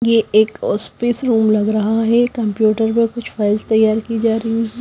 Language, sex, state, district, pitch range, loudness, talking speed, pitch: Hindi, female, Himachal Pradesh, Shimla, 215-230 Hz, -15 LUFS, 200 wpm, 225 Hz